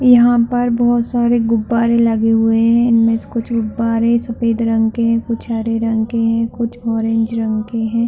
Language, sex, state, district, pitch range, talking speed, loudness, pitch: Hindi, female, Chhattisgarh, Bilaspur, 225-235 Hz, 185 wpm, -15 LUFS, 230 Hz